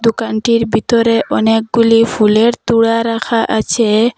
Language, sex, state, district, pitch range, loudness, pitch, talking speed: Bengali, female, Assam, Hailakandi, 225-230 Hz, -13 LUFS, 230 Hz, 100 wpm